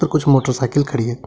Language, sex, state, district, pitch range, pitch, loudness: Hindi, male, Jharkhand, Deoghar, 125-145 Hz, 135 Hz, -17 LUFS